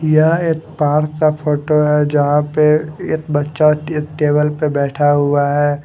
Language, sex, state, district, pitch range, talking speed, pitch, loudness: Hindi, male, Haryana, Rohtak, 145-155 Hz, 165 wpm, 150 Hz, -15 LUFS